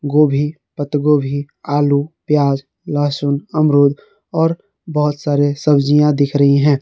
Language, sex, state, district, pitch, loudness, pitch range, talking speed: Hindi, male, Jharkhand, Garhwa, 145 Hz, -16 LUFS, 140-150 Hz, 125 wpm